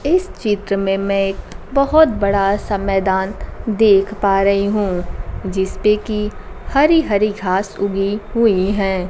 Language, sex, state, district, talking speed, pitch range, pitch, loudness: Hindi, female, Bihar, Kaimur, 140 wpm, 195-215 Hz, 200 Hz, -17 LUFS